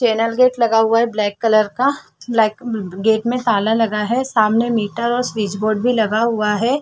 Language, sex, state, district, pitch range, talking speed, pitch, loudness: Hindi, female, Chhattisgarh, Bastar, 215-240 Hz, 195 wpm, 225 Hz, -17 LUFS